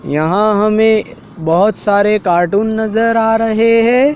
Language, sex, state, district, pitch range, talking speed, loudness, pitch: Hindi, male, Madhya Pradesh, Dhar, 200-225 Hz, 130 wpm, -12 LUFS, 215 Hz